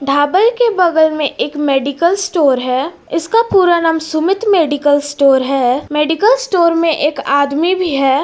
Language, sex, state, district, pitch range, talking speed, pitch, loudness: Hindi, female, Jharkhand, Palamu, 285-360 Hz, 160 wpm, 315 Hz, -13 LUFS